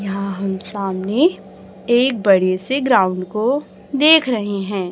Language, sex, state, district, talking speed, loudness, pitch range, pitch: Hindi, male, Chhattisgarh, Raipur, 135 wpm, -17 LUFS, 195-255 Hz, 205 Hz